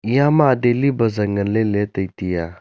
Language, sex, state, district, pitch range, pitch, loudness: Wancho, male, Arunachal Pradesh, Longding, 100-125 Hz, 110 Hz, -18 LUFS